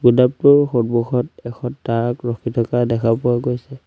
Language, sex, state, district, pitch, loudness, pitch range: Assamese, male, Assam, Sonitpur, 120 Hz, -18 LUFS, 120-125 Hz